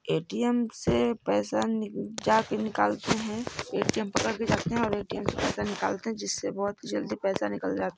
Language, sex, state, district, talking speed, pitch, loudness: Hindi, male, Chhattisgarh, Sarguja, 175 wpm, 200 Hz, -29 LUFS